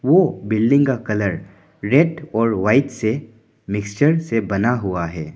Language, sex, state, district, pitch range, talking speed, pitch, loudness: Hindi, male, Arunachal Pradesh, Papum Pare, 100-135 Hz, 145 wpm, 110 Hz, -19 LUFS